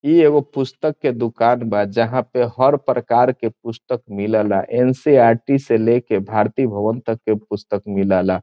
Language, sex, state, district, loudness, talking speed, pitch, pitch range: Bhojpuri, male, Bihar, Saran, -18 LUFS, 165 wpm, 115 Hz, 105-130 Hz